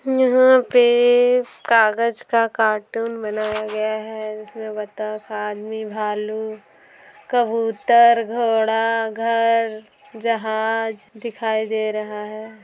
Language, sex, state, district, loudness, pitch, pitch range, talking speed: Bhojpuri, female, Bihar, Saran, -19 LUFS, 220 Hz, 215-230 Hz, 95 wpm